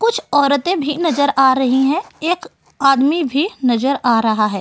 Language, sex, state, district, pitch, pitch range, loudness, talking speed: Hindi, female, Delhi, New Delhi, 280 Hz, 265-320 Hz, -16 LUFS, 180 wpm